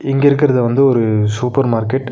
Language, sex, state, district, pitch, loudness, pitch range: Tamil, male, Tamil Nadu, Nilgiris, 130 Hz, -14 LUFS, 115-135 Hz